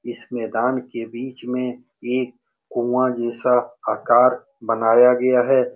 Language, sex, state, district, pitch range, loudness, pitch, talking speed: Hindi, male, Bihar, Saran, 120-125 Hz, -20 LUFS, 125 Hz, 125 wpm